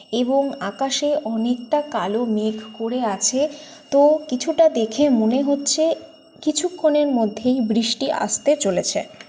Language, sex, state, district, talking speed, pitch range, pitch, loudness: Bengali, female, West Bengal, Jalpaiguri, 110 wpm, 225-300 Hz, 275 Hz, -20 LUFS